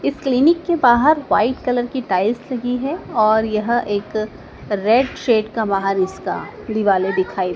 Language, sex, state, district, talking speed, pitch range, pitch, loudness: Hindi, female, Madhya Pradesh, Dhar, 165 wpm, 205-250 Hz, 220 Hz, -18 LUFS